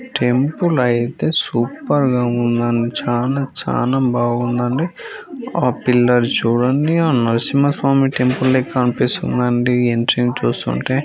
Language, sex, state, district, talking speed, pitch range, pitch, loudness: Telugu, male, Andhra Pradesh, Guntur, 105 wpm, 120-140 Hz, 125 Hz, -17 LUFS